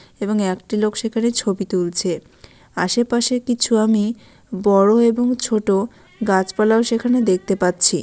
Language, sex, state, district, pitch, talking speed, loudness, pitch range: Bengali, female, West Bengal, Dakshin Dinajpur, 215 Hz, 125 wpm, -18 LUFS, 190-235 Hz